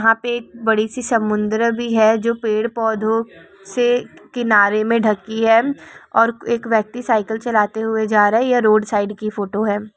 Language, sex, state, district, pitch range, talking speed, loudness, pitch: Hindi, female, West Bengal, Purulia, 215-235 Hz, 175 wpm, -18 LUFS, 225 Hz